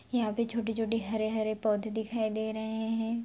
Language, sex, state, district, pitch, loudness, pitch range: Hindi, female, Bihar, Sitamarhi, 220 Hz, -32 LUFS, 220-225 Hz